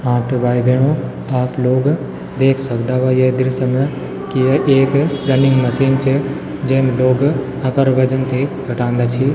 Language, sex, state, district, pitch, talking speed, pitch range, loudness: Garhwali, male, Uttarakhand, Tehri Garhwal, 130 Hz, 165 wpm, 130-135 Hz, -16 LUFS